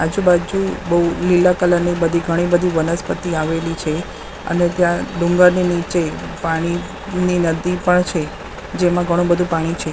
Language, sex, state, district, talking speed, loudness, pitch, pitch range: Gujarati, female, Maharashtra, Mumbai Suburban, 150 wpm, -17 LUFS, 175 Hz, 165-180 Hz